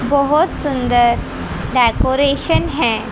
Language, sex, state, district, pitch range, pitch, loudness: Hindi, female, Haryana, Rohtak, 240-285 Hz, 275 Hz, -16 LUFS